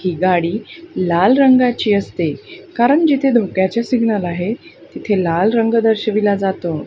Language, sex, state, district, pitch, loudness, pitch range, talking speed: Marathi, female, Maharashtra, Gondia, 220 Hz, -16 LUFS, 190-250 Hz, 130 wpm